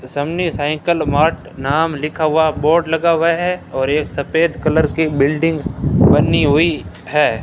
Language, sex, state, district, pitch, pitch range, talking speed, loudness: Hindi, male, Rajasthan, Bikaner, 155 Hz, 145-165 Hz, 145 wpm, -16 LUFS